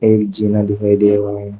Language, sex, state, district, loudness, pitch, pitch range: Hindi, male, Uttar Pradesh, Shamli, -15 LUFS, 105 Hz, 100-105 Hz